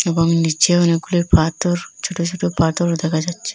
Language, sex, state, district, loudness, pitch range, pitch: Bengali, female, Assam, Hailakandi, -18 LUFS, 165-175 Hz, 170 Hz